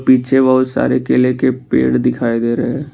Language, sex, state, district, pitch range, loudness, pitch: Hindi, male, Assam, Kamrup Metropolitan, 120-130 Hz, -14 LUFS, 125 Hz